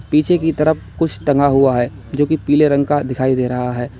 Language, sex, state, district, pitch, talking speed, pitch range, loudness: Hindi, male, Uttar Pradesh, Lalitpur, 140 Hz, 240 wpm, 125-150 Hz, -16 LUFS